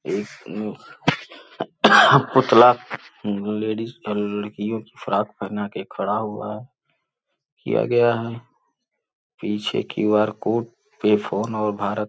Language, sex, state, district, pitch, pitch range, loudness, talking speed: Hindi, male, Uttar Pradesh, Gorakhpur, 105 Hz, 105-115 Hz, -21 LUFS, 110 wpm